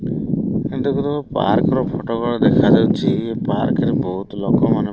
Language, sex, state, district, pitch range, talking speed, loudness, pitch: Odia, male, Odisha, Malkangiri, 100-140 Hz, 135 wpm, -18 LUFS, 120 Hz